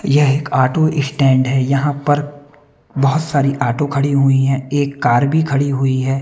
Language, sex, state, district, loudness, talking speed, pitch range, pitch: Hindi, male, Bihar, West Champaran, -16 LUFS, 185 wpm, 135-145 Hz, 140 Hz